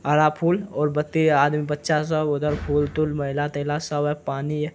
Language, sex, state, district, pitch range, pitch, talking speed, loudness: Hindi, male, Bihar, Araria, 145-155 Hz, 150 Hz, 190 wpm, -23 LUFS